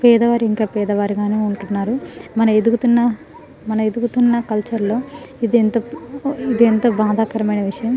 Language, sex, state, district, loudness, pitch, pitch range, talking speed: Telugu, female, Telangana, Nalgonda, -18 LUFS, 225 Hz, 215-240 Hz, 135 wpm